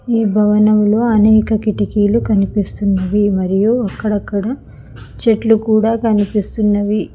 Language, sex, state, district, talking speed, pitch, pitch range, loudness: Telugu, female, Telangana, Hyderabad, 85 wpm, 210 Hz, 205-220 Hz, -14 LUFS